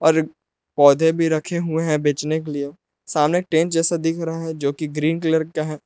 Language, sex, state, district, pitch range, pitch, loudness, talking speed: Hindi, male, Jharkhand, Palamu, 150-165 Hz, 160 Hz, -20 LUFS, 215 wpm